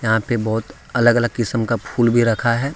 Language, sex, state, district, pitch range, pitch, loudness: Hindi, male, Jharkhand, Deoghar, 115-120 Hz, 115 Hz, -18 LUFS